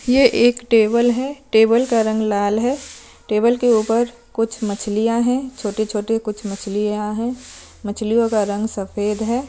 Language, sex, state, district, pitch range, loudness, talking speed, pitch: Hindi, female, Punjab, Fazilka, 210-240 Hz, -19 LUFS, 150 wpm, 225 Hz